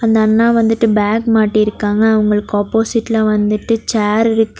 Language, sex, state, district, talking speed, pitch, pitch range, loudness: Tamil, female, Tamil Nadu, Nilgiris, 115 wpm, 220 Hz, 210-225 Hz, -14 LUFS